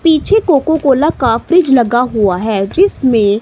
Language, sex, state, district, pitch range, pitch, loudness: Hindi, female, Himachal Pradesh, Shimla, 225-320 Hz, 265 Hz, -12 LUFS